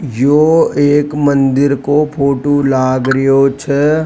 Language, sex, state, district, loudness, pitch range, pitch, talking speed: Rajasthani, male, Rajasthan, Nagaur, -12 LUFS, 135-145 Hz, 140 Hz, 120 wpm